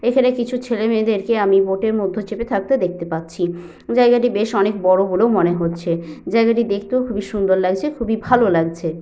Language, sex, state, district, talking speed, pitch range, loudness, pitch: Bengali, female, West Bengal, Paschim Medinipur, 180 wpm, 180-230 Hz, -18 LUFS, 205 Hz